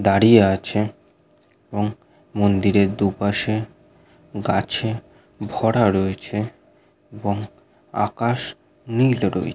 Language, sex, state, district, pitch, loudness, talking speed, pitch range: Bengali, male, West Bengal, Purulia, 105 Hz, -21 LUFS, 75 wpm, 100-110 Hz